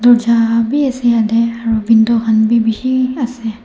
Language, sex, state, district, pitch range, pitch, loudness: Nagamese, male, Nagaland, Dimapur, 225-240 Hz, 230 Hz, -13 LUFS